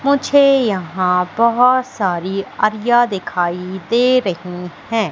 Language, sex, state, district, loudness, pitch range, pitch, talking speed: Hindi, female, Madhya Pradesh, Katni, -16 LUFS, 180-245 Hz, 210 Hz, 95 wpm